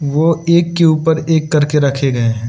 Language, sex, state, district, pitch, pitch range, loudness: Hindi, male, Arunachal Pradesh, Lower Dibang Valley, 155 Hz, 140-165 Hz, -14 LUFS